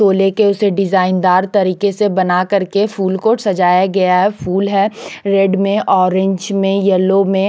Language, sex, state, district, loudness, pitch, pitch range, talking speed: Hindi, female, Chandigarh, Chandigarh, -14 LUFS, 195 Hz, 185-200 Hz, 175 wpm